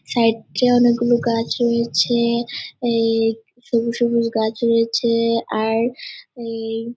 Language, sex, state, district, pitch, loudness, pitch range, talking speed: Bengali, male, West Bengal, Dakshin Dinajpur, 230 Hz, -19 LUFS, 225-240 Hz, 130 wpm